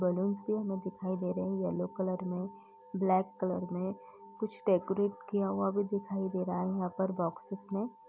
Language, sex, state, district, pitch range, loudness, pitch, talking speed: Hindi, female, Uttar Pradesh, Etah, 180-200 Hz, -34 LUFS, 190 Hz, 195 wpm